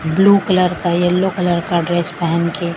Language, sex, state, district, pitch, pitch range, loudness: Hindi, female, Maharashtra, Mumbai Suburban, 175 Hz, 170-185 Hz, -16 LUFS